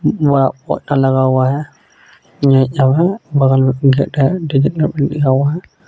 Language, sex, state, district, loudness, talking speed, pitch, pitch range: Hindi, male, Jharkhand, Deoghar, -14 LUFS, 130 wpm, 140 Hz, 135-150 Hz